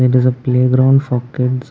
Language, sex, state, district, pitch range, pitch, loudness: English, male, Karnataka, Bangalore, 125-130 Hz, 125 Hz, -14 LUFS